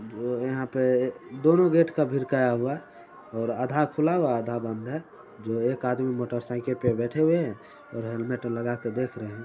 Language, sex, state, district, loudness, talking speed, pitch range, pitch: Hindi, male, Bihar, Saran, -27 LUFS, 195 wpm, 120-140 Hz, 125 Hz